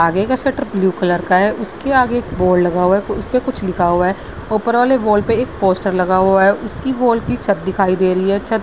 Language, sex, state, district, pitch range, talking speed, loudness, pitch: Hindi, female, Bihar, Vaishali, 185-240 Hz, 265 wpm, -16 LUFS, 200 Hz